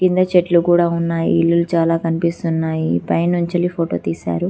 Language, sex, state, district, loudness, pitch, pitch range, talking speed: Telugu, female, Telangana, Karimnagar, -17 LUFS, 170 Hz, 160-175 Hz, 160 wpm